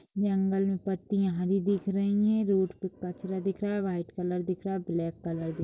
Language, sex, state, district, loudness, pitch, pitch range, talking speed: Hindi, female, Bihar, East Champaran, -30 LUFS, 190 Hz, 180-195 Hz, 210 wpm